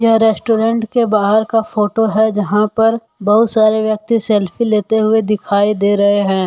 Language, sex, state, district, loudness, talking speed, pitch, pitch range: Hindi, male, Jharkhand, Deoghar, -14 LUFS, 175 wpm, 215 Hz, 210-225 Hz